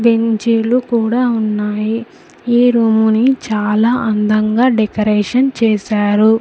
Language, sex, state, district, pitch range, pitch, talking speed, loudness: Telugu, female, Andhra Pradesh, Sri Satya Sai, 215-235 Hz, 225 Hz, 85 wpm, -14 LUFS